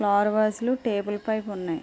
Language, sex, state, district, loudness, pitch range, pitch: Telugu, female, Andhra Pradesh, Guntur, -26 LUFS, 205-220 Hz, 210 Hz